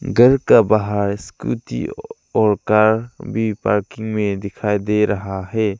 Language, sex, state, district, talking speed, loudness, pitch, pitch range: Hindi, male, Arunachal Pradesh, Lower Dibang Valley, 135 wpm, -18 LUFS, 105 Hz, 105-110 Hz